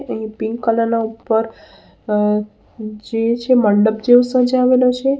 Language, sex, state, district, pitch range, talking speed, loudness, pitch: Gujarati, female, Gujarat, Valsad, 220-250 Hz, 140 wpm, -16 LUFS, 225 Hz